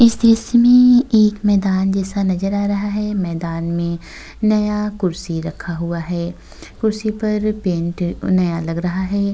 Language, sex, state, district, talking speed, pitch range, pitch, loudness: Hindi, female, Uttar Pradesh, Jyotiba Phule Nagar, 160 wpm, 170-215 Hz, 195 Hz, -18 LUFS